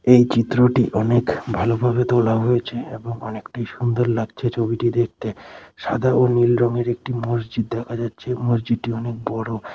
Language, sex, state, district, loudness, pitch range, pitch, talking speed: Bengali, male, West Bengal, Dakshin Dinajpur, -21 LUFS, 115-120 Hz, 120 Hz, 140 wpm